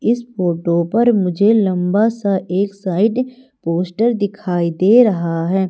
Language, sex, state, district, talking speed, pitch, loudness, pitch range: Hindi, female, Madhya Pradesh, Umaria, 135 wpm, 195 Hz, -16 LUFS, 180-225 Hz